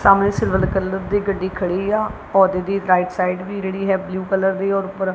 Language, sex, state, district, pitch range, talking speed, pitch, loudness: Punjabi, male, Punjab, Kapurthala, 185-195 Hz, 220 wpm, 190 Hz, -19 LUFS